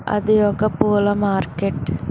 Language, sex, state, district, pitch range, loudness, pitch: Telugu, female, Telangana, Hyderabad, 195-210 Hz, -19 LUFS, 205 Hz